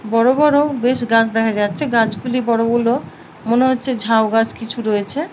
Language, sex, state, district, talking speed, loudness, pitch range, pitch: Bengali, female, West Bengal, Paschim Medinipur, 180 wpm, -17 LUFS, 225-255 Hz, 230 Hz